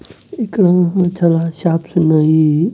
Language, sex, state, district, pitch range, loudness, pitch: Telugu, male, Andhra Pradesh, Annamaya, 165-180 Hz, -14 LUFS, 170 Hz